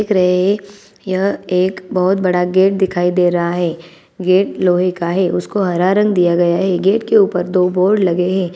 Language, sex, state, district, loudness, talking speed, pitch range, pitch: Hindi, female, Chhattisgarh, Bilaspur, -15 LUFS, 195 wpm, 180-195 Hz, 185 Hz